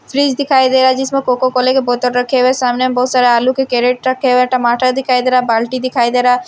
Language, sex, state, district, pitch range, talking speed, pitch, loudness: Hindi, female, Himachal Pradesh, Shimla, 250-260 Hz, 305 wpm, 255 Hz, -13 LUFS